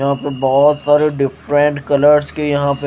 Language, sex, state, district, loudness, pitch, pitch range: Hindi, male, Odisha, Malkangiri, -14 LUFS, 145 Hz, 140-150 Hz